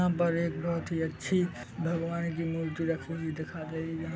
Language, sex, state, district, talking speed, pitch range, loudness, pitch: Hindi, male, Chhattisgarh, Bilaspur, 230 wpm, 160-170 Hz, -32 LUFS, 165 Hz